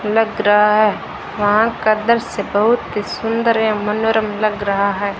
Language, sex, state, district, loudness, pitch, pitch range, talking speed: Hindi, female, Rajasthan, Bikaner, -16 LUFS, 215 Hz, 205-225 Hz, 160 wpm